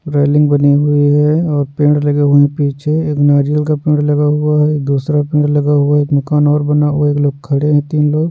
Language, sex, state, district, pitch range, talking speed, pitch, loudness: Hindi, male, Odisha, Nuapada, 145-150 Hz, 240 wpm, 145 Hz, -13 LUFS